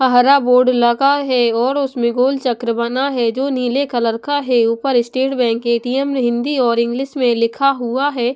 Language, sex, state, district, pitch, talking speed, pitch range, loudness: Hindi, female, Punjab, Pathankot, 250 Hz, 185 wpm, 235-270 Hz, -16 LUFS